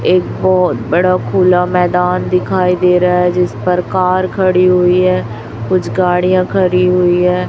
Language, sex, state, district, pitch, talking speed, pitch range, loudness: Hindi, female, Chhattisgarh, Raipur, 180 Hz, 160 wpm, 180-185 Hz, -12 LUFS